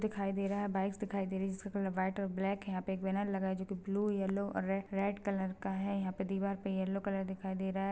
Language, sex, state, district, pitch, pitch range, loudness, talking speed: Hindi, female, Chhattisgarh, Balrampur, 195 Hz, 190-200 Hz, -37 LUFS, 295 wpm